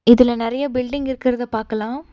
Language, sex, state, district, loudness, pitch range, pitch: Tamil, female, Tamil Nadu, Nilgiris, -19 LUFS, 230-265 Hz, 250 Hz